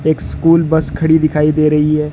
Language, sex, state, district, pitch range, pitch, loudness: Hindi, male, Rajasthan, Bikaner, 150-160 Hz, 155 Hz, -13 LUFS